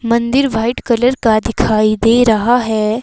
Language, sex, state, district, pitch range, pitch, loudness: Hindi, female, Himachal Pradesh, Shimla, 220-245 Hz, 230 Hz, -13 LUFS